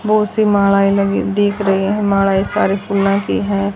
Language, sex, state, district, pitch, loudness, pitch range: Hindi, female, Haryana, Jhajjar, 200 Hz, -15 LUFS, 195-205 Hz